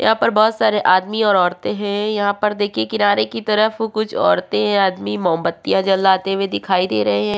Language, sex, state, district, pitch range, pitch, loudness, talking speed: Hindi, female, Uttarakhand, Tehri Garhwal, 170-210 Hz, 195 Hz, -17 LUFS, 195 wpm